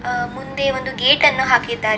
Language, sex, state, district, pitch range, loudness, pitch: Kannada, female, Karnataka, Dakshina Kannada, 245-270 Hz, -17 LUFS, 260 Hz